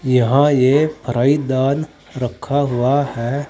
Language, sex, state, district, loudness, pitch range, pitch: Hindi, male, Uttar Pradesh, Saharanpur, -17 LUFS, 125-145 Hz, 140 Hz